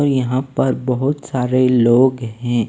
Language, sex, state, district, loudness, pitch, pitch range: Hindi, male, Maharashtra, Mumbai Suburban, -17 LUFS, 130 Hz, 120-130 Hz